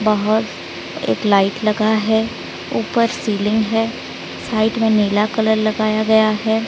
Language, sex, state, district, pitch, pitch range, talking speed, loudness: Hindi, female, Odisha, Sambalpur, 215 Hz, 215-220 Hz, 135 wpm, -17 LUFS